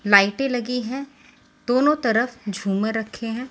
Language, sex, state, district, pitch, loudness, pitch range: Hindi, female, Maharashtra, Washim, 235 Hz, -22 LUFS, 215-255 Hz